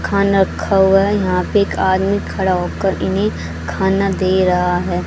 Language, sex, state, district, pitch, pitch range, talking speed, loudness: Hindi, female, Haryana, Charkhi Dadri, 190 Hz, 180-195 Hz, 190 wpm, -16 LUFS